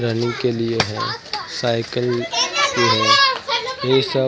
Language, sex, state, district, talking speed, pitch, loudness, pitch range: Hindi, male, Maharashtra, Mumbai Suburban, 140 wpm, 125 Hz, -18 LUFS, 115-135 Hz